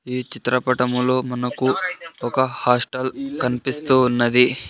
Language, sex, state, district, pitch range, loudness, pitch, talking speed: Telugu, male, Andhra Pradesh, Sri Satya Sai, 125-130 Hz, -20 LUFS, 125 Hz, 90 wpm